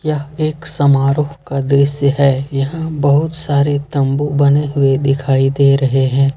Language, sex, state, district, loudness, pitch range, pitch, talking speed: Hindi, male, Jharkhand, Ranchi, -15 LUFS, 135-145 Hz, 140 Hz, 140 wpm